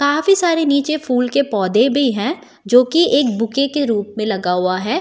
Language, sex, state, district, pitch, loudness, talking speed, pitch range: Hindi, female, Delhi, New Delhi, 255 Hz, -16 LUFS, 215 wpm, 215-285 Hz